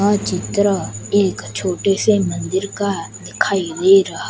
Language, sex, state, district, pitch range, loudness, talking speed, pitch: Hindi, male, Gujarat, Gandhinagar, 175-200 Hz, -18 LUFS, 140 wpm, 195 Hz